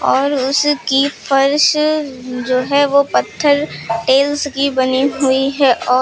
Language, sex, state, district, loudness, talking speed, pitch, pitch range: Hindi, female, Uttar Pradesh, Lucknow, -15 LUFS, 130 wpm, 275 Hz, 260-285 Hz